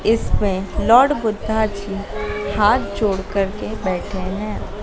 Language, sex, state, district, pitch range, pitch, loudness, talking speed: Hindi, female, Madhya Pradesh, Dhar, 195-220 Hz, 200 Hz, -20 LUFS, 110 wpm